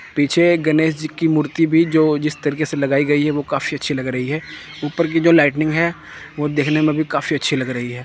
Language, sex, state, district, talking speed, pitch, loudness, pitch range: Hindi, male, Chandigarh, Chandigarh, 255 wpm, 150 Hz, -18 LUFS, 145-160 Hz